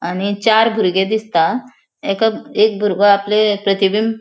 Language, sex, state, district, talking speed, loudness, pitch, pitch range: Konkani, female, Goa, North and South Goa, 140 wpm, -15 LUFS, 210 Hz, 195-220 Hz